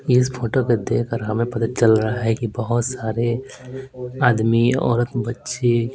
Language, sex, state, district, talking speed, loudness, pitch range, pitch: Hindi, male, Bihar, Patna, 150 wpm, -20 LUFS, 115-125 Hz, 120 Hz